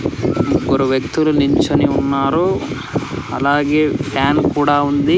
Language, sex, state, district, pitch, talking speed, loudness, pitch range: Telugu, male, Andhra Pradesh, Sri Satya Sai, 145 Hz, 95 wpm, -16 LUFS, 135-150 Hz